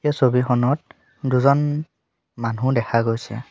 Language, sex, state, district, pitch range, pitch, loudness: Assamese, male, Assam, Sonitpur, 115-140 Hz, 125 Hz, -21 LUFS